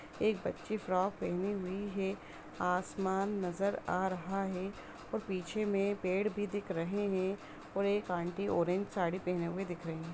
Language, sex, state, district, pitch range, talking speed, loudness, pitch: Hindi, female, Bihar, East Champaran, 180-200 Hz, 170 wpm, -36 LUFS, 190 Hz